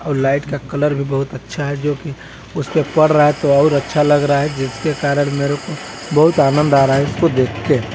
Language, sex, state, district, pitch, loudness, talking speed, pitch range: Hindi, male, Chhattisgarh, Balrampur, 145 Hz, -16 LUFS, 240 wpm, 140-150 Hz